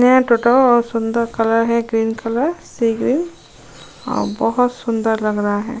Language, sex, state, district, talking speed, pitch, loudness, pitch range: Hindi, female, Uttar Pradesh, Jyotiba Phule Nagar, 155 wpm, 230 Hz, -17 LUFS, 225-245 Hz